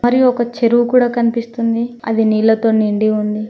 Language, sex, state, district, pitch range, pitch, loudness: Telugu, female, Telangana, Mahabubabad, 220-240 Hz, 230 Hz, -15 LUFS